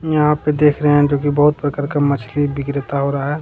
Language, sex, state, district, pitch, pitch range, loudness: Hindi, male, Bihar, Jamui, 145 Hz, 140-150 Hz, -17 LUFS